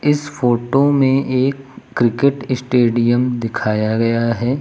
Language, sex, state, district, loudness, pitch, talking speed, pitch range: Hindi, male, Uttar Pradesh, Lucknow, -17 LUFS, 125 Hz, 115 wpm, 120-135 Hz